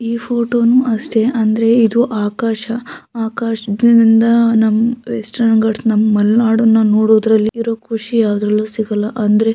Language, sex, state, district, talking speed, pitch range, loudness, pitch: Kannada, female, Karnataka, Shimoga, 125 wpm, 220-230 Hz, -14 LUFS, 225 Hz